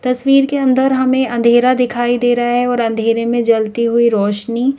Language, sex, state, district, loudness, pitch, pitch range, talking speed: Hindi, female, Madhya Pradesh, Bhopal, -14 LUFS, 240 Hz, 230-260 Hz, 190 wpm